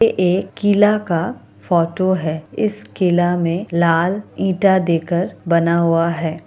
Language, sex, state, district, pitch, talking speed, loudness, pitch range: Hindi, female, Bihar, Kishanganj, 175 Hz, 150 wpm, -17 LUFS, 170-190 Hz